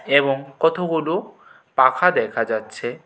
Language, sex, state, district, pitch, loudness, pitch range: Bengali, male, Tripura, West Tripura, 135 Hz, -20 LUFS, 120-160 Hz